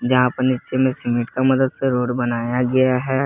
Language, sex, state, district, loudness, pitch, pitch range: Hindi, male, Jharkhand, Garhwa, -19 LUFS, 130 Hz, 125-130 Hz